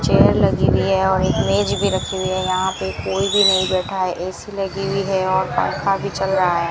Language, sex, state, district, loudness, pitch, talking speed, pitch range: Hindi, female, Rajasthan, Bikaner, -19 LUFS, 190 Hz, 250 wpm, 185-195 Hz